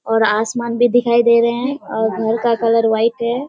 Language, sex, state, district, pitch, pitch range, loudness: Hindi, female, Bihar, Kishanganj, 235 Hz, 225-240 Hz, -16 LUFS